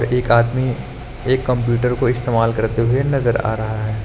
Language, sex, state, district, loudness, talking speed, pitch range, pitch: Hindi, male, Uttar Pradesh, Lucknow, -18 LUFS, 180 wpm, 115-125 Hz, 120 Hz